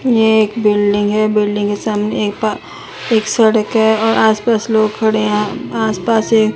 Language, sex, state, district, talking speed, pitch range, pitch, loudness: Hindi, female, Chandigarh, Chandigarh, 200 wpm, 210-220 Hz, 215 Hz, -14 LUFS